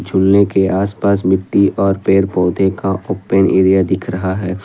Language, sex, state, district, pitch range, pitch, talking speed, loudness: Hindi, male, Assam, Kamrup Metropolitan, 95-100 Hz, 95 Hz, 170 wpm, -14 LUFS